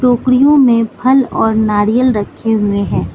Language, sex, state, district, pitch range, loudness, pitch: Hindi, female, Manipur, Imphal West, 215-255 Hz, -12 LUFS, 230 Hz